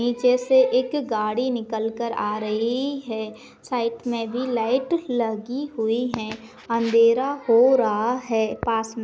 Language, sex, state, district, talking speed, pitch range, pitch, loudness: Hindi, female, Maharashtra, Sindhudurg, 145 wpm, 225-255 Hz, 235 Hz, -23 LUFS